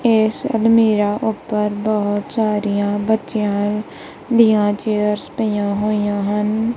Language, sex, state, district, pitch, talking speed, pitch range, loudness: Punjabi, female, Punjab, Kapurthala, 210 Hz, 100 wpm, 205-220 Hz, -18 LUFS